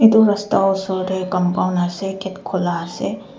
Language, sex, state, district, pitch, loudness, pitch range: Nagamese, female, Nagaland, Dimapur, 190 Hz, -19 LUFS, 180-195 Hz